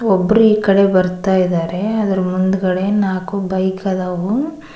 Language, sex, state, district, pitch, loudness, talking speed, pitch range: Kannada, female, Karnataka, Koppal, 190 Hz, -16 LUFS, 125 wpm, 185-205 Hz